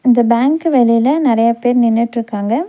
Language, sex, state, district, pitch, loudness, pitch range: Tamil, female, Tamil Nadu, Nilgiris, 240 Hz, -13 LUFS, 230-265 Hz